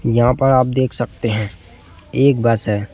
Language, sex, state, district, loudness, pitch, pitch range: Hindi, male, Madhya Pradesh, Bhopal, -17 LUFS, 120 Hz, 105-130 Hz